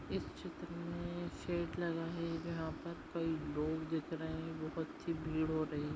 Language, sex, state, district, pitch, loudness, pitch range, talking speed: Hindi, female, Maharashtra, Aurangabad, 160 Hz, -41 LUFS, 155-170 Hz, 180 wpm